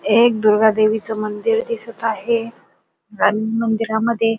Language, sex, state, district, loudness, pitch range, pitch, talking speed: Marathi, female, Maharashtra, Dhule, -18 LUFS, 215-230 Hz, 225 Hz, 110 wpm